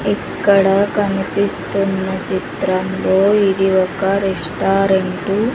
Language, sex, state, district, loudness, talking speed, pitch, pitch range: Telugu, female, Andhra Pradesh, Sri Satya Sai, -16 LUFS, 75 wpm, 195 Hz, 190-200 Hz